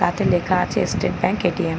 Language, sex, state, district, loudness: Bengali, female, West Bengal, Paschim Medinipur, -20 LUFS